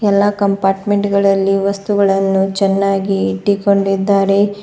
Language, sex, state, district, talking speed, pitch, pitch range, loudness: Kannada, female, Karnataka, Bidar, 80 wpm, 195 Hz, 195-200 Hz, -14 LUFS